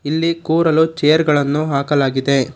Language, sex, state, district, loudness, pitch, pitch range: Kannada, male, Karnataka, Bangalore, -16 LUFS, 150 Hz, 140-160 Hz